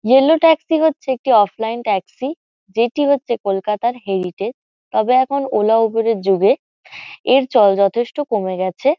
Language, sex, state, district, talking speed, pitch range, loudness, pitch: Bengali, female, West Bengal, Kolkata, 145 wpm, 205-275 Hz, -17 LUFS, 235 Hz